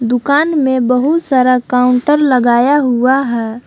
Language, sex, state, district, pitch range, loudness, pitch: Hindi, female, Jharkhand, Palamu, 245-285 Hz, -12 LUFS, 255 Hz